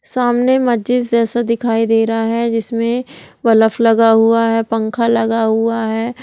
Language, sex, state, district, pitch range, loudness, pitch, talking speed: Hindi, female, Bihar, Jahanabad, 225-235 Hz, -15 LUFS, 230 Hz, 155 wpm